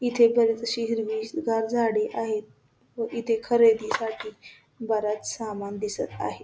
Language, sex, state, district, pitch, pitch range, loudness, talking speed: Marathi, female, Maharashtra, Solapur, 225 Hz, 215-230 Hz, -26 LUFS, 130 wpm